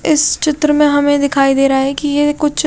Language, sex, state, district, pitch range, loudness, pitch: Hindi, female, Chhattisgarh, Raipur, 280-300 Hz, -13 LUFS, 290 Hz